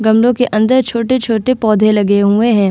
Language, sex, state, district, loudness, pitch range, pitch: Hindi, female, Bihar, Vaishali, -12 LUFS, 215-245 Hz, 225 Hz